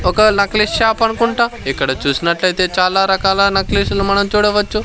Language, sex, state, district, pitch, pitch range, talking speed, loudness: Telugu, male, Andhra Pradesh, Sri Satya Sai, 200 Hz, 185-215 Hz, 135 wpm, -14 LUFS